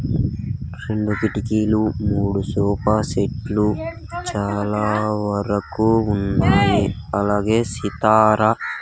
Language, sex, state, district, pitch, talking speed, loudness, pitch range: Telugu, male, Andhra Pradesh, Sri Satya Sai, 105 Hz, 75 wpm, -20 LUFS, 100-110 Hz